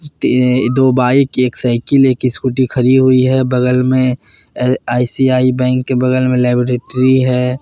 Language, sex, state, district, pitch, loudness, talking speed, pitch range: Hindi, male, Bihar, Katihar, 130 Hz, -13 LUFS, 150 wpm, 125-130 Hz